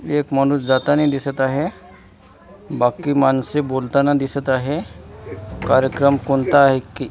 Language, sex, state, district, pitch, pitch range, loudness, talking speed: Marathi, male, Maharashtra, Washim, 135 Hz, 130-145 Hz, -18 LUFS, 125 wpm